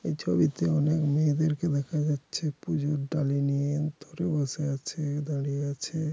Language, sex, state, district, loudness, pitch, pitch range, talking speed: Bengali, male, West Bengal, Dakshin Dinajpur, -28 LUFS, 150 Hz, 145-155 Hz, 135 wpm